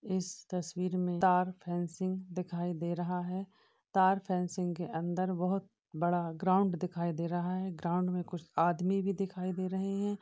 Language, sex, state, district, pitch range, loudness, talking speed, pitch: Hindi, female, Uttar Pradesh, Budaun, 175-190 Hz, -34 LUFS, 170 wpm, 180 Hz